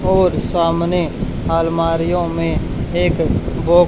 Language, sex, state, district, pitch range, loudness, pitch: Hindi, male, Haryana, Charkhi Dadri, 165-175 Hz, -17 LUFS, 165 Hz